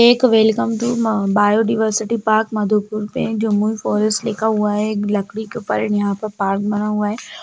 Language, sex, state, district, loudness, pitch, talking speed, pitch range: Hindi, female, Bihar, Jamui, -18 LUFS, 215 Hz, 195 wpm, 210-225 Hz